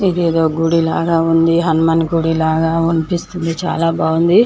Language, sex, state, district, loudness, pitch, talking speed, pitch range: Telugu, female, Andhra Pradesh, Chittoor, -15 LUFS, 165 Hz, 135 wpm, 165-170 Hz